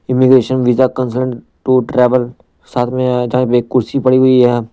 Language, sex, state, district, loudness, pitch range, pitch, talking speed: Hindi, male, Punjab, Pathankot, -13 LUFS, 125-130 Hz, 125 Hz, 165 wpm